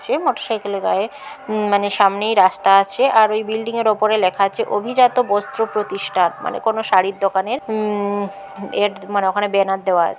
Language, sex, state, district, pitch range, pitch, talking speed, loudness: Bengali, female, West Bengal, Jhargram, 195-220 Hz, 205 Hz, 180 wpm, -18 LUFS